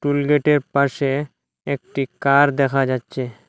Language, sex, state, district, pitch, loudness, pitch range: Bengali, male, Assam, Hailakandi, 140 Hz, -19 LUFS, 135-145 Hz